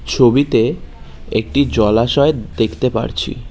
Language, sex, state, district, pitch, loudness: Bengali, male, West Bengal, Cooch Behar, 120 Hz, -16 LUFS